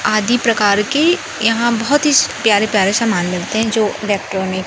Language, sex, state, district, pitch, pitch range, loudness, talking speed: Hindi, male, Madhya Pradesh, Katni, 220 Hz, 205-235 Hz, -15 LUFS, 180 wpm